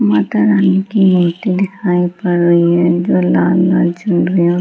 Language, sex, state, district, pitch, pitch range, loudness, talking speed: Hindi, female, Bihar, Gaya, 175 Hz, 170-185 Hz, -13 LUFS, 170 wpm